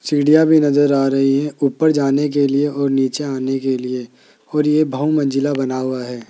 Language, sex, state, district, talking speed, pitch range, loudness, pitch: Hindi, male, Rajasthan, Jaipur, 210 wpm, 135-150 Hz, -17 LUFS, 140 Hz